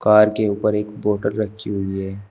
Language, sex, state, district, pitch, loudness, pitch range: Hindi, male, Uttar Pradesh, Shamli, 105 Hz, -20 LUFS, 100-105 Hz